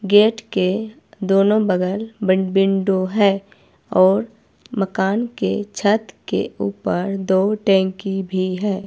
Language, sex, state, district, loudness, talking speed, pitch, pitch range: Hindi, female, Himachal Pradesh, Shimla, -19 LUFS, 115 wpm, 195 Hz, 190-210 Hz